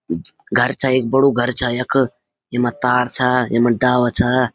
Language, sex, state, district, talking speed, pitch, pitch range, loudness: Garhwali, male, Uttarakhand, Uttarkashi, 170 wpm, 125 Hz, 120-130 Hz, -17 LUFS